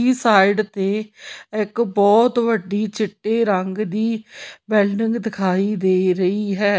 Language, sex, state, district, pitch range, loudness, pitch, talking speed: Punjabi, female, Punjab, Pathankot, 200-225 Hz, -19 LUFS, 210 Hz, 125 wpm